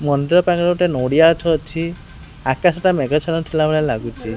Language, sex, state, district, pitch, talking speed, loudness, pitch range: Odia, male, Odisha, Khordha, 160 Hz, 180 wpm, -17 LUFS, 140-170 Hz